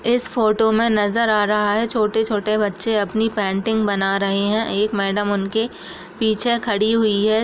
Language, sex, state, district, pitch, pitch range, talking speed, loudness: Hindi, female, Bihar, Bhagalpur, 215 Hz, 205-225 Hz, 170 wpm, -19 LUFS